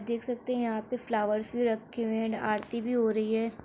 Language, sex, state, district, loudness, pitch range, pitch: Hindi, female, Bihar, Bhagalpur, -31 LUFS, 220-235 Hz, 225 Hz